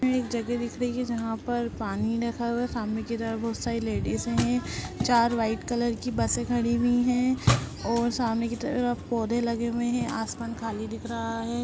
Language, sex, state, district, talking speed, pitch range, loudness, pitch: Hindi, female, Bihar, Muzaffarpur, 205 wpm, 225-240 Hz, -28 LUFS, 235 Hz